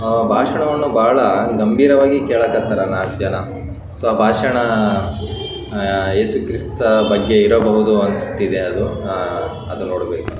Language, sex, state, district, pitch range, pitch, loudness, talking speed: Kannada, male, Karnataka, Raichur, 100-115 Hz, 110 Hz, -16 LUFS, 65 wpm